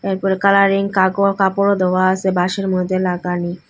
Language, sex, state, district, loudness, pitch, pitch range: Bengali, female, Assam, Hailakandi, -16 LUFS, 190 Hz, 185-195 Hz